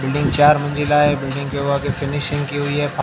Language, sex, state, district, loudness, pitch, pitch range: Hindi, male, Rajasthan, Barmer, -18 LUFS, 145 Hz, 140-145 Hz